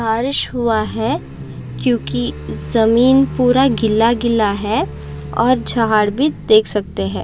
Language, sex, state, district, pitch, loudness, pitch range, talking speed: Hindi, female, Maharashtra, Aurangabad, 225 Hz, -16 LUFS, 200-240 Hz, 125 wpm